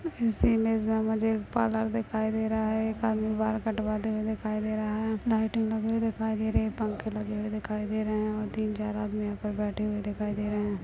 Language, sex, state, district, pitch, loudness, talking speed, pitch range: Hindi, male, Maharashtra, Nagpur, 220 Hz, -30 LUFS, 250 wpm, 210-220 Hz